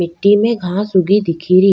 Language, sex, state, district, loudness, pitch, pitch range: Rajasthani, female, Rajasthan, Nagaur, -14 LUFS, 190 Hz, 180-205 Hz